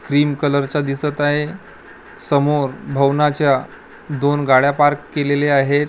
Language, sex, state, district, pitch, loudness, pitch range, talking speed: Marathi, male, Maharashtra, Gondia, 145 Hz, -17 LUFS, 140-150 Hz, 110 wpm